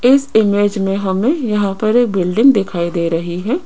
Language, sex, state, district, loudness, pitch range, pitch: Hindi, female, Rajasthan, Jaipur, -15 LUFS, 190-240 Hz, 205 Hz